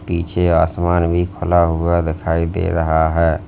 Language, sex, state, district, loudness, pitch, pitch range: Hindi, male, Uttar Pradesh, Lalitpur, -17 LUFS, 85 Hz, 80-85 Hz